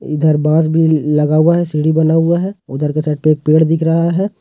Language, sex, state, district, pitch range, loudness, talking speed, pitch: Hindi, male, Jharkhand, Ranchi, 150-165 Hz, -14 LUFS, 260 wpm, 160 Hz